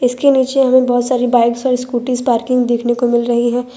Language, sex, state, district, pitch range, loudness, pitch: Hindi, female, Gujarat, Valsad, 240-255 Hz, -14 LUFS, 245 Hz